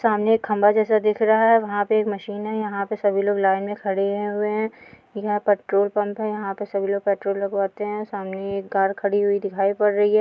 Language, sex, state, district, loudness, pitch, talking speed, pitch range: Hindi, female, Uttar Pradesh, Deoria, -22 LUFS, 205 Hz, 240 wpm, 200-215 Hz